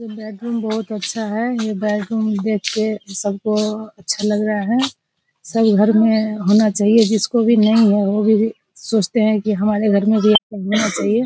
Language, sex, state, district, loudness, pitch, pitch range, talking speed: Hindi, female, Bihar, Begusarai, -17 LUFS, 215 Hz, 210-220 Hz, 190 wpm